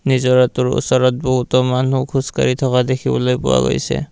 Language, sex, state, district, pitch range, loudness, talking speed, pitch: Assamese, male, Assam, Kamrup Metropolitan, 120-130 Hz, -16 LUFS, 130 wpm, 125 Hz